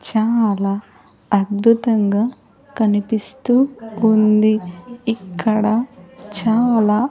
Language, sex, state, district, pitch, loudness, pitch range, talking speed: Telugu, female, Andhra Pradesh, Sri Satya Sai, 220 Hz, -18 LUFS, 205-230 Hz, 60 wpm